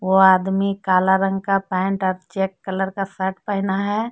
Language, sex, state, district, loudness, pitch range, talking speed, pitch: Hindi, female, Jharkhand, Deoghar, -20 LUFS, 190-195 Hz, 205 wpm, 190 Hz